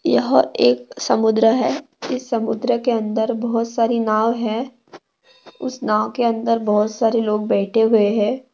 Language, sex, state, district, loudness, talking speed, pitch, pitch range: Hindi, female, Maharashtra, Dhule, -19 LUFS, 155 wpm, 230 Hz, 220-245 Hz